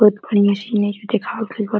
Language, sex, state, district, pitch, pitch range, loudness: Bhojpuri, male, Uttar Pradesh, Deoria, 210 Hz, 205-220 Hz, -19 LUFS